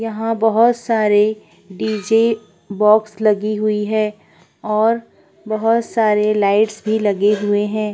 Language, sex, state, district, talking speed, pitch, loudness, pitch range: Hindi, female, Uttar Pradesh, Budaun, 120 wpm, 215 Hz, -17 LUFS, 210-225 Hz